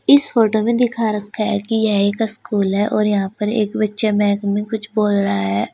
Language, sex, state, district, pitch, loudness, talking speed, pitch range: Hindi, female, Uttar Pradesh, Saharanpur, 210 Hz, -18 LUFS, 230 wpm, 205-220 Hz